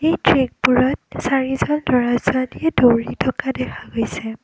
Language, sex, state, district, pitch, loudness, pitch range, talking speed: Assamese, female, Assam, Kamrup Metropolitan, 255 Hz, -19 LUFS, 240-265 Hz, 95 wpm